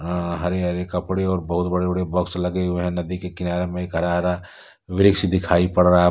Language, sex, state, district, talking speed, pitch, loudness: Hindi, male, Jharkhand, Deoghar, 225 wpm, 90 Hz, -22 LUFS